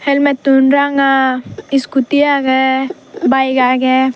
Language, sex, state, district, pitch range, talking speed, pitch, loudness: Chakma, female, Tripura, Dhalai, 260-280 Hz, 100 wpm, 270 Hz, -13 LUFS